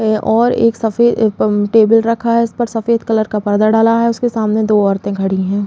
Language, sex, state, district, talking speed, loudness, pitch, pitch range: Hindi, female, Uttar Pradesh, Jalaun, 200 wpm, -14 LUFS, 225 Hz, 210-230 Hz